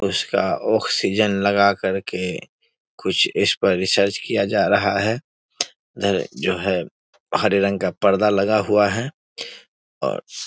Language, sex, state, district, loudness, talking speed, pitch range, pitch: Hindi, male, Bihar, Muzaffarpur, -20 LUFS, 135 wpm, 100-110 Hz, 100 Hz